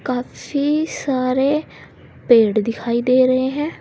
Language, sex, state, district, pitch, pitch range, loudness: Hindi, female, Uttar Pradesh, Saharanpur, 255 Hz, 245-285 Hz, -18 LUFS